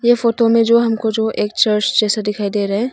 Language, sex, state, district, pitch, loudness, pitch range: Hindi, female, Arunachal Pradesh, Longding, 220 Hz, -16 LUFS, 210-230 Hz